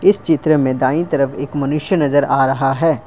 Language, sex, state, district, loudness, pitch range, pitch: Hindi, male, Assam, Kamrup Metropolitan, -16 LUFS, 135-160 Hz, 145 Hz